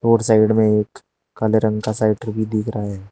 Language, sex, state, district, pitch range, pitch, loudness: Hindi, male, Uttar Pradesh, Shamli, 105-110 Hz, 110 Hz, -18 LUFS